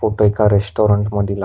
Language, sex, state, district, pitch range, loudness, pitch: Marathi, male, Maharashtra, Pune, 100-105 Hz, -16 LUFS, 105 Hz